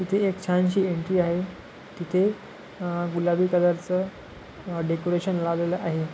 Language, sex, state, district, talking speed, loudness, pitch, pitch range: Marathi, male, Maharashtra, Pune, 105 wpm, -25 LUFS, 180 Hz, 175-185 Hz